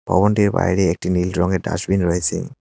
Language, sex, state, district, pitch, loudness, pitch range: Bengali, male, West Bengal, Cooch Behar, 95 Hz, -19 LUFS, 90-105 Hz